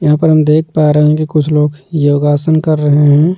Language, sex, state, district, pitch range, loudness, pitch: Hindi, male, Delhi, New Delhi, 150-155 Hz, -11 LUFS, 150 Hz